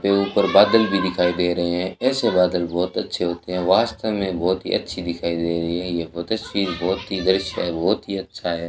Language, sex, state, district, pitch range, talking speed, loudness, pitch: Hindi, male, Rajasthan, Bikaner, 85-100 Hz, 230 wpm, -21 LUFS, 90 Hz